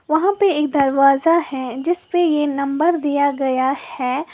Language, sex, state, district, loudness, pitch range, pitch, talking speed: Hindi, female, Uttar Pradesh, Lalitpur, -18 LUFS, 275-335 Hz, 290 Hz, 150 wpm